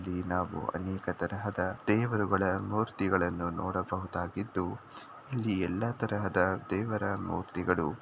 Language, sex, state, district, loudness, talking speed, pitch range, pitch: Kannada, male, Karnataka, Shimoga, -32 LUFS, 75 wpm, 90-105 Hz, 95 Hz